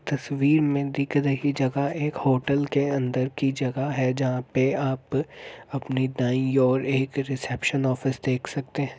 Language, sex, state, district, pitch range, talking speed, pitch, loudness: Hindi, male, Uttar Pradesh, Jyotiba Phule Nagar, 130-140 Hz, 165 wpm, 135 Hz, -25 LUFS